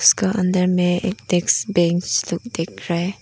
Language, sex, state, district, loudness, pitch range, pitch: Hindi, female, Arunachal Pradesh, Lower Dibang Valley, -20 LUFS, 175-190 Hz, 180 Hz